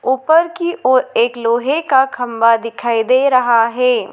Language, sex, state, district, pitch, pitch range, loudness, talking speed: Hindi, female, Madhya Pradesh, Dhar, 250 Hz, 235-265 Hz, -14 LUFS, 160 wpm